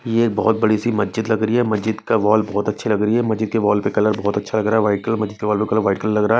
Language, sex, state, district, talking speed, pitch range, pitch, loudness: Hindi, male, Chhattisgarh, Raipur, 335 wpm, 105-110 Hz, 110 Hz, -19 LUFS